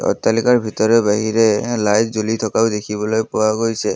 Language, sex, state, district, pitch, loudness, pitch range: Assamese, male, Assam, Kamrup Metropolitan, 110 Hz, -17 LUFS, 110-115 Hz